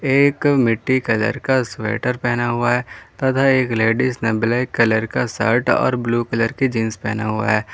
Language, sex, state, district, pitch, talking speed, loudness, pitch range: Hindi, male, Jharkhand, Ranchi, 120 Hz, 185 wpm, -18 LUFS, 110-130 Hz